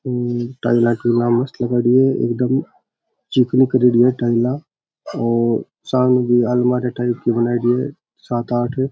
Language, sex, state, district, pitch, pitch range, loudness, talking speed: Rajasthani, male, Rajasthan, Churu, 120 Hz, 120-125 Hz, -17 LUFS, 150 wpm